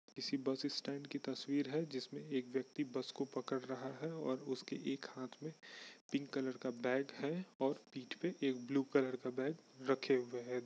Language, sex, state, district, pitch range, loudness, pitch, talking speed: Hindi, male, Bihar, Bhagalpur, 130-140 Hz, -41 LUFS, 135 Hz, 195 wpm